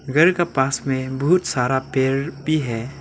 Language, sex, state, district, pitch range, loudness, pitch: Hindi, male, Arunachal Pradesh, Lower Dibang Valley, 130-155 Hz, -20 LUFS, 135 Hz